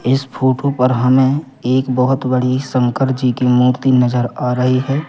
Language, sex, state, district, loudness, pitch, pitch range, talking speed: Hindi, male, Madhya Pradesh, Katni, -15 LUFS, 130 Hz, 125-130 Hz, 175 wpm